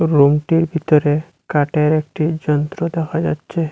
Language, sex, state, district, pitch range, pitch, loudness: Bengali, male, Assam, Hailakandi, 150-165 Hz, 155 Hz, -17 LUFS